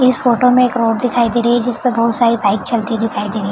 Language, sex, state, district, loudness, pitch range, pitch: Hindi, female, Bihar, Begusarai, -15 LUFS, 225-245 Hz, 235 Hz